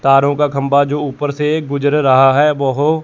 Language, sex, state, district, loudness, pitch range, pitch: Hindi, male, Chandigarh, Chandigarh, -14 LUFS, 135-150 Hz, 145 Hz